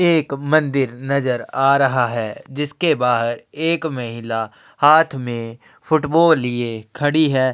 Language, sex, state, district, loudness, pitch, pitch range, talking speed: Hindi, male, Uttar Pradesh, Jyotiba Phule Nagar, -18 LUFS, 135 Hz, 120-155 Hz, 125 wpm